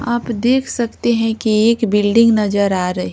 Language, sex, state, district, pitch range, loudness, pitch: Hindi, female, Bihar, Patna, 205-235 Hz, -15 LUFS, 225 Hz